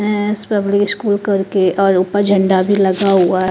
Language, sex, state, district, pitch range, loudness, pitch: Hindi, female, Punjab, Kapurthala, 190-205 Hz, -14 LUFS, 200 Hz